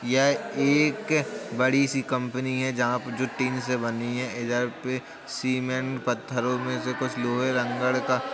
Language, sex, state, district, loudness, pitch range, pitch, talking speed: Hindi, female, Uttar Pradesh, Jalaun, -26 LUFS, 125-130 Hz, 130 Hz, 165 wpm